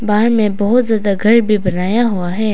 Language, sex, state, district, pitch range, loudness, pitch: Hindi, female, Arunachal Pradesh, Papum Pare, 200-225 Hz, -14 LUFS, 210 Hz